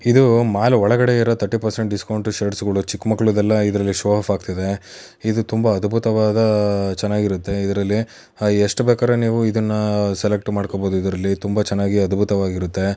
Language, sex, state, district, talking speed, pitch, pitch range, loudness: Kannada, female, Karnataka, Chamarajanagar, 145 wpm, 105 Hz, 100-110 Hz, -19 LUFS